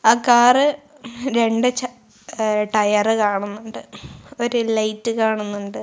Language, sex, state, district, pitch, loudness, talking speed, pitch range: Malayalam, female, Kerala, Kozhikode, 225 Hz, -19 LUFS, 105 wpm, 215-245 Hz